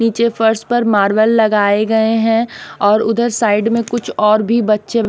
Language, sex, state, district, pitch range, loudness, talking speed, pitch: Hindi, female, Odisha, Nuapada, 215-230 Hz, -14 LUFS, 175 wpm, 225 Hz